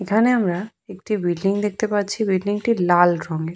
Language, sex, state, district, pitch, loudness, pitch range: Bengali, female, West Bengal, Purulia, 200 Hz, -20 LUFS, 175-215 Hz